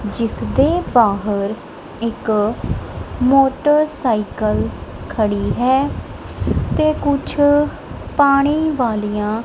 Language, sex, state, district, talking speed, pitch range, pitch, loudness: Punjabi, female, Punjab, Kapurthala, 70 wpm, 215-290 Hz, 245 Hz, -17 LUFS